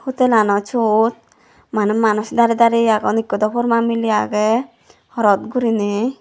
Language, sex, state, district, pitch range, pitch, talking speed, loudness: Chakma, female, Tripura, Dhalai, 215-235 Hz, 225 Hz, 135 wpm, -17 LUFS